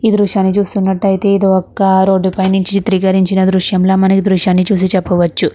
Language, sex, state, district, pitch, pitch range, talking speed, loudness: Telugu, female, Andhra Pradesh, Guntur, 190 Hz, 190-195 Hz, 185 wpm, -12 LUFS